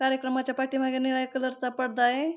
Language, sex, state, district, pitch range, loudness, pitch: Marathi, female, Maharashtra, Pune, 255-265 Hz, -28 LUFS, 260 Hz